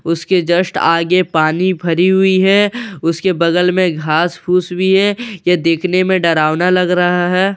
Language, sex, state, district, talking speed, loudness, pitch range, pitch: Hindi, male, Bihar, Katihar, 160 wpm, -13 LUFS, 170-185 Hz, 180 Hz